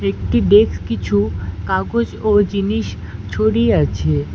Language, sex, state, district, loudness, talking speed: Bengali, female, West Bengal, Alipurduar, -17 LUFS, 110 wpm